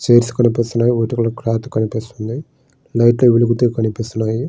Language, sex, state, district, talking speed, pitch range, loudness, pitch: Telugu, male, Andhra Pradesh, Srikakulam, 120 wpm, 115-120 Hz, -17 LUFS, 120 Hz